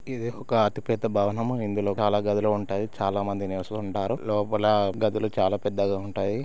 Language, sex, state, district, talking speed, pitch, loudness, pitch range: Telugu, male, Telangana, Karimnagar, 130 wpm, 105 Hz, -26 LUFS, 100-110 Hz